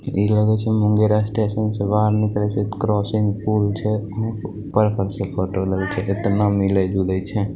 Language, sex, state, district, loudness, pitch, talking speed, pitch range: Maithili, male, Bihar, Begusarai, -20 LUFS, 105 Hz, 165 wpm, 100-105 Hz